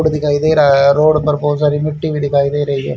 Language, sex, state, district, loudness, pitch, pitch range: Hindi, male, Haryana, Charkhi Dadri, -13 LUFS, 150 Hz, 145-155 Hz